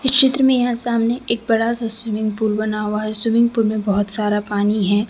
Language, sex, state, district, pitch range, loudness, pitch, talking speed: Hindi, female, Jharkhand, Deoghar, 210-235 Hz, -18 LUFS, 220 Hz, 235 wpm